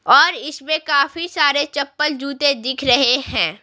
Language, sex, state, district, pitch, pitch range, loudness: Hindi, female, Bihar, Patna, 285 Hz, 275-310 Hz, -17 LUFS